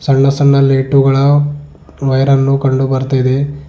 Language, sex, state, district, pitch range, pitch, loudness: Kannada, male, Karnataka, Bidar, 135-140 Hz, 135 Hz, -12 LUFS